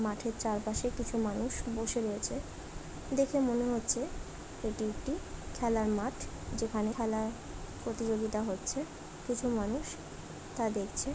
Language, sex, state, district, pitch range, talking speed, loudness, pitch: Bengali, female, West Bengal, Dakshin Dinajpur, 215-245 Hz, 115 wpm, -35 LUFS, 225 Hz